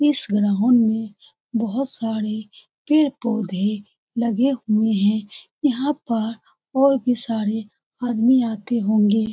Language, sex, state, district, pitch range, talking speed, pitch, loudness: Hindi, female, Bihar, Saran, 215-255 Hz, 110 wpm, 225 Hz, -21 LUFS